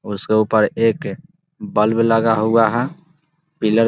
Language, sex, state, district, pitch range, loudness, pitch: Hindi, male, Bihar, Muzaffarpur, 110-155 Hz, -17 LUFS, 115 Hz